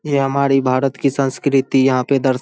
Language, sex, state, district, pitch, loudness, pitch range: Hindi, male, Bihar, Saharsa, 135 Hz, -16 LUFS, 130-140 Hz